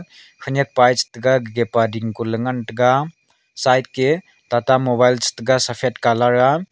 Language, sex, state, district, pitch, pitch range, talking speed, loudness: Wancho, male, Arunachal Pradesh, Longding, 125 Hz, 120-130 Hz, 145 wpm, -18 LUFS